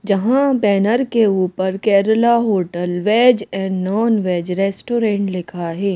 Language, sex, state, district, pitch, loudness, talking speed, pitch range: Hindi, female, Madhya Pradesh, Bhopal, 200 Hz, -17 LUFS, 130 wpm, 185-225 Hz